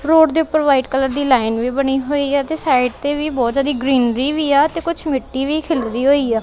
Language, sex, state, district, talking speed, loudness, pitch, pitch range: Punjabi, female, Punjab, Kapurthala, 250 wpm, -17 LUFS, 280 Hz, 260-300 Hz